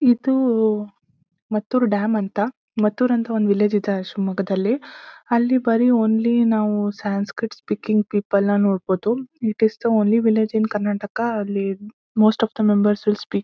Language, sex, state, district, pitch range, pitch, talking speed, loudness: Kannada, female, Karnataka, Shimoga, 205-230 Hz, 215 Hz, 145 wpm, -20 LUFS